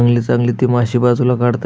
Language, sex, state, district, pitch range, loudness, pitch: Marathi, male, Maharashtra, Aurangabad, 120-125 Hz, -15 LUFS, 120 Hz